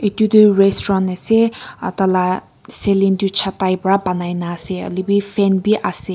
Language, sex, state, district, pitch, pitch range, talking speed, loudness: Nagamese, female, Nagaland, Kohima, 195 Hz, 185-200 Hz, 135 wpm, -16 LUFS